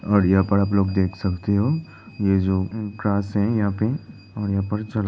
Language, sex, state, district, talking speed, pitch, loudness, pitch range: Hindi, male, Uttar Pradesh, Hamirpur, 225 wpm, 100 Hz, -22 LUFS, 100-105 Hz